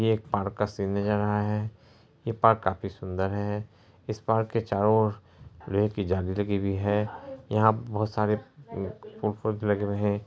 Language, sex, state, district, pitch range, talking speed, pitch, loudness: Hindi, female, Bihar, Araria, 100-110 Hz, 195 wpm, 105 Hz, -28 LUFS